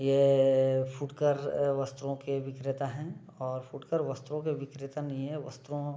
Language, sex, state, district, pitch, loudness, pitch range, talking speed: Hindi, male, Uttar Pradesh, Deoria, 140 Hz, -31 LUFS, 135-145 Hz, 150 wpm